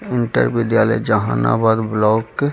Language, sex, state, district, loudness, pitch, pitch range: Hindi, male, Bihar, Gaya, -17 LUFS, 110 Hz, 110-115 Hz